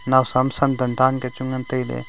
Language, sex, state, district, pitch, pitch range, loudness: Wancho, male, Arunachal Pradesh, Longding, 130 Hz, 125-130 Hz, -21 LUFS